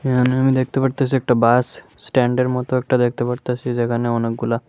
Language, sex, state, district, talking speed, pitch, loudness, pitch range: Bengali, male, Tripura, West Tripura, 165 wpm, 125 Hz, -19 LUFS, 120-130 Hz